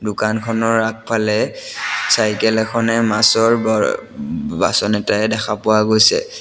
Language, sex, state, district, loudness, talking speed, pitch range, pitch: Assamese, male, Assam, Sonitpur, -16 LUFS, 105 wpm, 110-115 Hz, 110 Hz